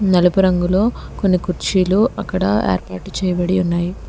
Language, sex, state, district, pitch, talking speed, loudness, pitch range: Telugu, female, Telangana, Hyderabad, 185 Hz, 115 wpm, -17 LUFS, 180-195 Hz